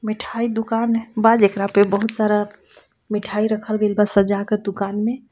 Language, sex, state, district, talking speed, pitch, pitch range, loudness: Bhojpuri, female, Jharkhand, Palamu, 170 wpm, 210 Hz, 205-225 Hz, -19 LUFS